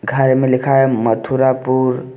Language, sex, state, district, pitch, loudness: Hindi, male, Jharkhand, Deoghar, 130 Hz, -15 LUFS